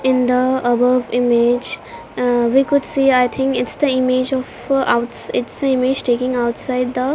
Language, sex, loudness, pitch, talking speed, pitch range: English, female, -17 LUFS, 255 Hz, 185 wpm, 245-265 Hz